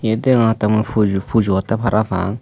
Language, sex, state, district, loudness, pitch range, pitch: Chakma, male, Tripura, Unakoti, -17 LUFS, 100-115 Hz, 110 Hz